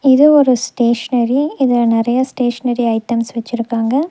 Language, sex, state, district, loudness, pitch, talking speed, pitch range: Tamil, female, Tamil Nadu, Nilgiris, -15 LUFS, 240 Hz, 115 wpm, 235-265 Hz